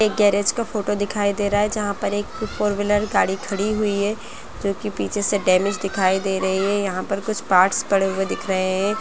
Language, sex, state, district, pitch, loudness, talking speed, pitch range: Hindi, female, Chhattisgarh, Bastar, 205 Hz, -21 LUFS, 225 wpm, 195-210 Hz